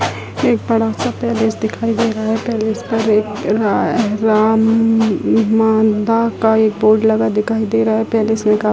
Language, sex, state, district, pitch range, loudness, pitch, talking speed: Hindi, female, Bihar, Sitamarhi, 215-225 Hz, -15 LUFS, 220 Hz, 170 wpm